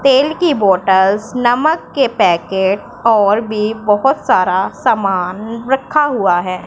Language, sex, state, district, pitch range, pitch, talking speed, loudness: Hindi, female, Punjab, Pathankot, 190-265 Hz, 215 Hz, 125 wpm, -14 LUFS